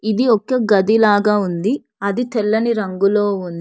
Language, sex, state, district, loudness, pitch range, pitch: Telugu, female, Telangana, Hyderabad, -17 LUFS, 200-230 Hz, 210 Hz